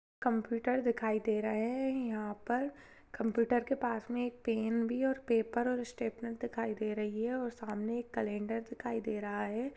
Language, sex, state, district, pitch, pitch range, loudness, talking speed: Hindi, female, Chhattisgarh, Jashpur, 230 Hz, 220-245 Hz, -35 LUFS, 185 wpm